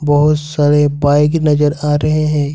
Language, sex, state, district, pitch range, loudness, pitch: Hindi, male, Jharkhand, Ranchi, 145-150 Hz, -13 LUFS, 150 Hz